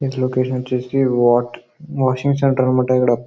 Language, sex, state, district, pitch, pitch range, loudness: Telugu, male, Karnataka, Bellary, 130 Hz, 125-135 Hz, -17 LUFS